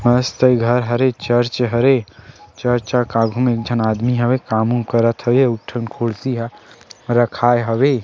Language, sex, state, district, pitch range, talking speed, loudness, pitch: Chhattisgarhi, male, Chhattisgarh, Sarguja, 115-125 Hz, 185 wpm, -17 LUFS, 120 Hz